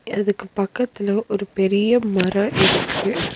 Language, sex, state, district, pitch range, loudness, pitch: Tamil, female, Tamil Nadu, Nilgiris, 200-215 Hz, -20 LUFS, 205 Hz